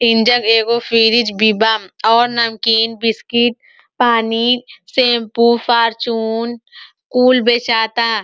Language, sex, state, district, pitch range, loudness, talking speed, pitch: Bhojpuri, female, Uttar Pradesh, Ghazipur, 225-240 Hz, -14 LUFS, 95 wpm, 235 Hz